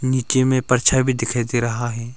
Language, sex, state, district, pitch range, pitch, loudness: Hindi, male, Arunachal Pradesh, Longding, 120-130 Hz, 125 Hz, -19 LUFS